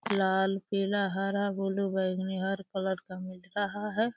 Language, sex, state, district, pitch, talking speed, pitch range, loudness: Hindi, female, Uttar Pradesh, Deoria, 195 Hz, 160 wpm, 190-200 Hz, -31 LUFS